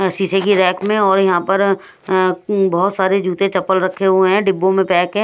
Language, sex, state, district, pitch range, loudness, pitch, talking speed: Hindi, female, Punjab, Pathankot, 185-195 Hz, -15 LUFS, 190 Hz, 230 wpm